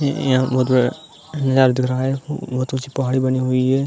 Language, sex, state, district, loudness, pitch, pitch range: Hindi, male, Uttar Pradesh, Hamirpur, -19 LUFS, 130 Hz, 130-135 Hz